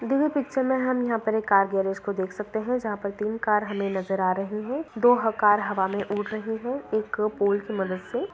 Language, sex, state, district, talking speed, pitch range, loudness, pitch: Hindi, female, Bihar, Madhepura, 260 wpm, 200-240 Hz, -25 LUFS, 210 Hz